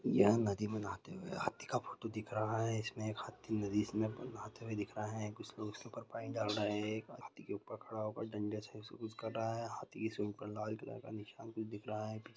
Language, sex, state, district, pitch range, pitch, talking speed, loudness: Maithili, male, Bihar, Supaul, 105-110 Hz, 110 Hz, 250 wpm, -41 LUFS